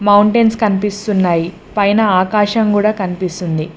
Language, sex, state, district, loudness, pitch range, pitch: Telugu, female, Telangana, Mahabubabad, -14 LUFS, 185-210 Hz, 205 Hz